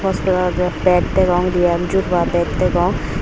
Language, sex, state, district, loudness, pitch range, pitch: Chakma, female, Tripura, Unakoti, -17 LUFS, 175-185 Hz, 180 Hz